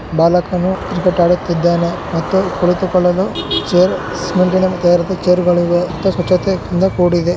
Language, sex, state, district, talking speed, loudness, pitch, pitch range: Kannada, male, Karnataka, Shimoga, 120 wpm, -15 LUFS, 180 Hz, 175-185 Hz